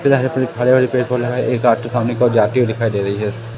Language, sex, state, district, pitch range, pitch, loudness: Hindi, male, Madhya Pradesh, Katni, 115-125 Hz, 120 Hz, -16 LUFS